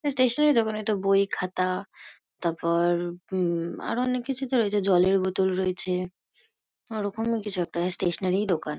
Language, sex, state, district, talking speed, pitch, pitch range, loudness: Bengali, female, West Bengal, Kolkata, 150 wpm, 190 Hz, 180-215 Hz, -26 LUFS